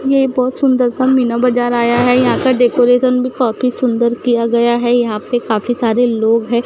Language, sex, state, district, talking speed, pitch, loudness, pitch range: Hindi, female, Maharashtra, Gondia, 205 wpm, 245 Hz, -14 LUFS, 235-255 Hz